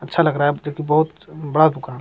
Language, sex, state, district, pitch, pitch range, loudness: Hindi, male, Bihar, Jamui, 150 Hz, 145-155 Hz, -19 LUFS